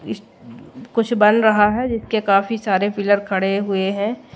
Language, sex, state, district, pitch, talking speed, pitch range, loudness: Hindi, female, Odisha, Malkangiri, 210 Hz, 165 wpm, 200-225 Hz, -18 LUFS